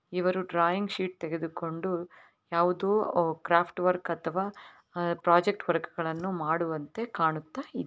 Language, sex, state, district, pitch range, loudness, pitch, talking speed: Kannada, female, Karnataka, Raichur, 165-185 Hz, -29 LUFS, 175 Hz, 105 wpm